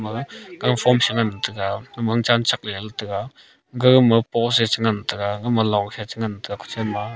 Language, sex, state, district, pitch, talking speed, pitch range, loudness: Wancho, male, Arunachal Pradesh, Longding, 110 Hz, 160 wpm, 105-120 Hz, -21 LUFS